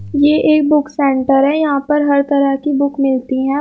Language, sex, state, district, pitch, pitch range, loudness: Hindi, female, Uttar Pradesh, Muzaffarnagar, 280 Hz, 270-295 Hz, -14 LUFS